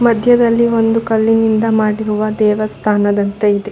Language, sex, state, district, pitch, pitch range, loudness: Kannada, female, Karnataka, Shimoga, 215 Hz, 210-225 Hz, -14 LUFS